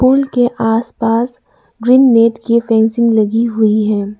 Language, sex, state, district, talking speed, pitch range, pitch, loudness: Hindi, female, Arunachal Pradesh, Lower Dibang Valley, 145 wpm, 225-240 Hz, 230 Hz, -13 LUFS